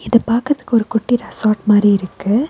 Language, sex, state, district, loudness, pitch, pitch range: Tamil, female, Tamil Nadu, Nilgiris, -16 LUFS, 225 Hz, 210-240 Hz